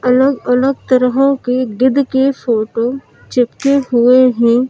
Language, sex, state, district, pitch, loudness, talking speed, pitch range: Hindi, female, Madhya Pradesh, Bhopal, 255 Hz, -13 LUFS, 115 wpm, 245-270 Hz